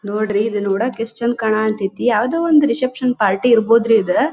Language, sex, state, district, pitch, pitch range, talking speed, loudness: Kannada, female, Karnataka, Dharwad, 225 Hz, 210-250 Hz, 180 wpm, -16 LUFS